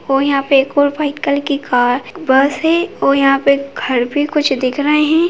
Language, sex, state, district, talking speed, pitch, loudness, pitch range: Hindi, female, Bihar, Begusarai, 225 wpm, 280 Hz, -14 LUFS, 270-300 Hz